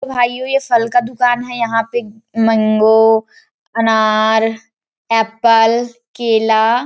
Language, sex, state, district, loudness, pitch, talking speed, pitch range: Hindi, female, Chhattisgarh, Rajnandgaon, -14 LUFS, 230 Hz, 105 wpm, 225-240 Hz